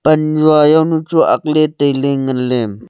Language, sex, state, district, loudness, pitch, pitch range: Wancho, male, Arunachal Pradesh, Longding, -13 LUFS, 155 Hz, 135-155 Hz